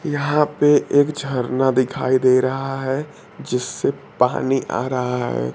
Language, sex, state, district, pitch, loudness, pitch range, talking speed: Hindi, male, Bihar, Kaimur, 135 Hz, -19 LUFS, 125-145 Hz, 140 wpm